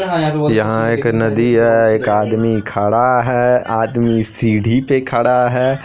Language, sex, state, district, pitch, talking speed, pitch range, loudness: Hindi, male, Bihar, Purnia, 115 Hz, 125 wpm, 110-125 Hz, -14 LUFS